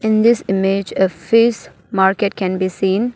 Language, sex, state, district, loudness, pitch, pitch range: English, female, Arunachal Pradesh, Papum Pare, -16 LUFS, 195 Hz, 190-220 Hz